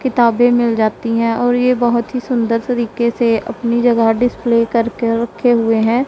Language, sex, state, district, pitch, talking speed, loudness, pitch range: Hindi, female, Punjab, Pathankot, 235 Hz, 180 wpm, -15 LUFS, 230-245 Hz